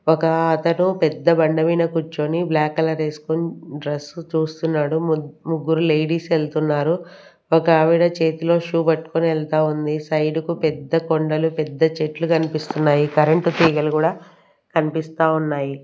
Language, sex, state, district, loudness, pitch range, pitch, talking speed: Telugu, female, Andhra Pradesh, Sri Satya Sai, -20 LUFS, 155-165 Hz, 160 Hz, 125 wpm